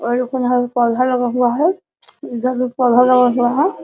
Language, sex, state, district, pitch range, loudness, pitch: Hindi, female, Jharkhand, Sahebganj, 245-255 Hz, -16 LUFS, 250 Hz